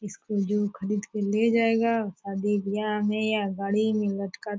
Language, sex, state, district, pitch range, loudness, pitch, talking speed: Hindi, female, Bihar, Purnia, 200-215 Hz, -26 LUFS, 210 Hz, 185 wpm